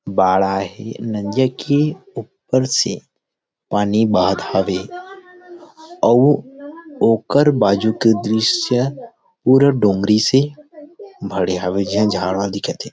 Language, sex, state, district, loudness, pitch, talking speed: Chhattisgarhi, male, Chhattisgarh, Rajnandgaon, -17 LUFS, 125 Hz, 115 wpm